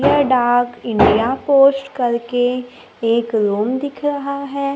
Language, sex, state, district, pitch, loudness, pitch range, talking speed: Hindi, female, Maharashtra, Gondia, 250 Hz, -17 LUFS, 235-275 Hz, 125 wpm